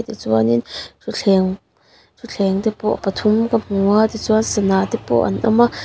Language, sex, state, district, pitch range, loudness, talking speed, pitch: Mizo, female, Mizoram, Aizawl, 190-220 Hz, -18 LUFS, 165 wpm, 205 Hz